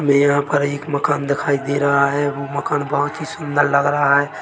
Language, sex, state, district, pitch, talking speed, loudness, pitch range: Hindi, male, Chhattisgarh, Bilaspur, 145 Hz, 230 wpm, -18 LUFS, 140-145 Hz